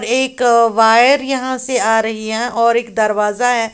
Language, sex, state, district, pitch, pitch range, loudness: Hindi, female, Uttar Pradesh, Lalitpur, 235 Hz, 225-250 Hz, -14 LUFS